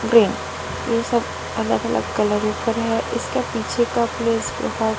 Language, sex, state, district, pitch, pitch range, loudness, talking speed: Hindi, female, Chhattisgarh, Raipur, 230 Hz, 220-235 Hz, -21 LUFS, 155 wpm